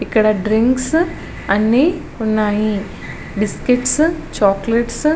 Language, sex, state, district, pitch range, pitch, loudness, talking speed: Telugu, female, Andhra Pradesh, Visakhapatnam, 210-260 Hz, 225 Hz, -17 LUFS, 70 wpm